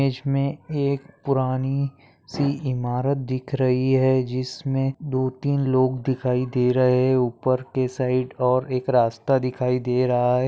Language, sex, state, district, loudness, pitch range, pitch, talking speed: Hindi, male, Maharashtra, Aurangabad, -23 LUFS, 125-135 Hz, 130 Hz, 155 wpm